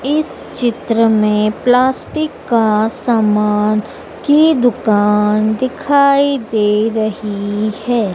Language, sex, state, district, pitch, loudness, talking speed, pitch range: Hindi, female, Madhya Pradesh, Dhar, 220 Hz, -14 LUFS, 90 wpm, 210-255 Hz